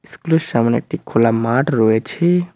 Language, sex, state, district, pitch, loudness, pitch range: Bengali, male, West Bengal, Cooch Behar, 125 Hz, -17 LUFS, 115-160 Hz